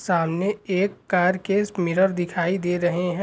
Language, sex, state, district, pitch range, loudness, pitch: Hindi, male, Bihar, Saran, 175-195 Hz, -23 LUFS, 180 Hz